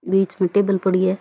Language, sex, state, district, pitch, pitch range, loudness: Rajasthani, female, Rajasthan, Churu, 190 Hz, 185-195 Hz, -19 LUFS